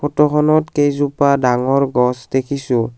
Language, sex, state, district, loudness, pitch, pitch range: Assamese, male, Assam, Kamrup Metropolitan, -16 LUFS, 140 Hz, 125-145 Hz